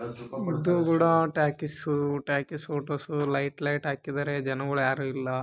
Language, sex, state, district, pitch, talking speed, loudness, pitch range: Kannada, male, Karnataka, Bellary, 145 Hz, 155 wpm, -28 LUFS, 140-150 Hz